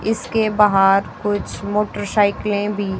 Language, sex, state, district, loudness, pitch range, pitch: Hindi, female, Haryana, Charkhi Dadri, -18 LUFS, 200-210 Hz, 205 Hz